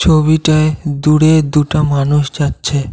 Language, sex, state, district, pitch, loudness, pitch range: Bengali, male, Assam, Kamrup Metropolitan, 150 Hz, -13 LUFS, 145-155 Hz